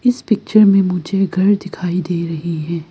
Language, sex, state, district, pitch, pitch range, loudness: Hindi, female, Arunachal Pradesh, Lower Dibang Valley, 185 Hz, 170-205 Hz, -16 LUFS